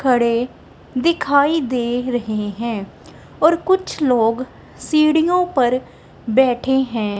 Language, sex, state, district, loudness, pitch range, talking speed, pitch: Hindi, female, Punjab, Kapurthala, -18 LUFS, 235-305 Hz, 100 wpm, 255 Hz